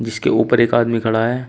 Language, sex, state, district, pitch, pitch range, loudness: Hindi, male, Uttar Pradesh, Shamli, 115 Hz, 115-120 Hz, -16 LUFS